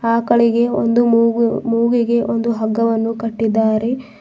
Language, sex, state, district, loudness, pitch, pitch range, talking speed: Kannada, female, Karnataka, Bidar, -16 LUFS, 230 Hz, 225-235 Hz, 100 wpm